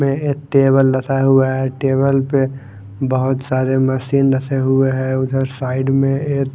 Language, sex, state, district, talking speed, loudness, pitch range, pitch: Hindi, male, Haryana, Jhajjar, 165 wpm, -16 LUFS, 130-135 Hz, 135 Hz